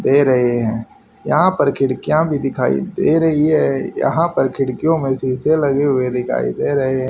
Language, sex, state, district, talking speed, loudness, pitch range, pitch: Hindi, male, Haryana, Rohtak, 175 wpm, -17 LUFS, 125-145 Hz, 135 Hz